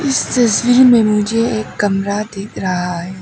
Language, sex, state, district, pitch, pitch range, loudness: Hindi, female, Arunachal Pradesh, Papum Pare, 210 Hz, 195-235 Hz, -15 LUFS